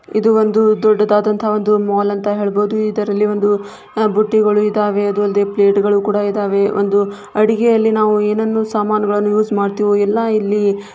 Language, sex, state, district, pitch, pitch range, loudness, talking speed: Kannada, female, Karnataka, Shimoga, 210 Hz, 205-215 Hz, -15 LUFS, 130 wpm